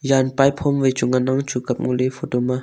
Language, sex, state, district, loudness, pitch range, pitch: Wancho, male, Arunachal Pradesh, Longding, -20 LUFS, 125-135 Hz, 130 Hz